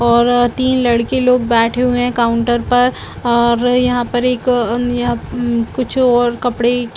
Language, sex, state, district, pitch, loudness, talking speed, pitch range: Hindi, female, Chhattisgarh, Bilaspur, 245 Hz, -15 LUFS, 180 wpm, 235-250 Hz